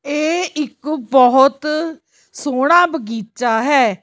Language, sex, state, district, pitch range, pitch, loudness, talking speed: Punjabi, female, Chandigarh, Chandigarh, 250-310 Hz, 280 Hz, -15 LUFS, 90 wpm